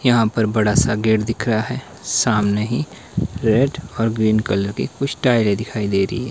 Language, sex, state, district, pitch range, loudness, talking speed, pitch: Hindi, male, Himachal Pradesh, Shimla, 105-120 Hz, -19 LUFS, 190 wpm, 110 Hz